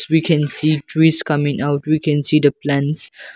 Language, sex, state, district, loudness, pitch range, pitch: English, male, Nagaland, Kohima, -16 LUFS, 145-155 Hz, 150 Hz